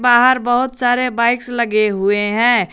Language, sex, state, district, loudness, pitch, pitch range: Hindi, male, Jharkhand, Garhwa, -15 LUFS, 240 Hz, 215-245 Hz